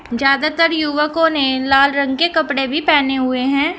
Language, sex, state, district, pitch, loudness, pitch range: Hindi, female, Uttar Pradesh, Shamli, 280 Hz, -15 LUFS, 270-315 Hz